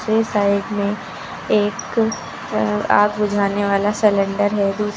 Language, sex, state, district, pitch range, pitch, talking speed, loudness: Hindi, female, Uttar Pradesh, Lucknow, 200-210 Hz, 205 Hz, 145 wpm, -19 LUFS